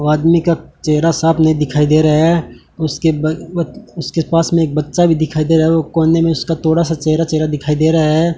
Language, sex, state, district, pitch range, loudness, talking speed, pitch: Hindi, male, Rajasthan, Bikaner, 155-165 Hz, -14 LUFS, 235 wpm, 160 Hz